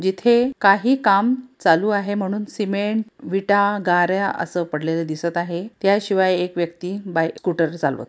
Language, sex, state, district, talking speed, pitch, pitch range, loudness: Marathi, female, Maharashtra, Pune, 135 wpm, 195 Hz, 170-205 Hz, -20 LUFS